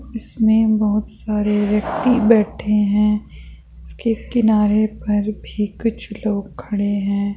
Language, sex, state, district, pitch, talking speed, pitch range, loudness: Hindi, female, Rajasthan, Jaipur, 210 Hz, 115 wpm, 210-220 Hz, -19 LUFS